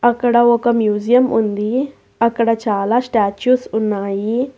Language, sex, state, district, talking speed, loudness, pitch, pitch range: Telugu, female, Telangana, Hyderabad, 105 wpm, -16 LUFS, 230 Hz, 210-240 Hz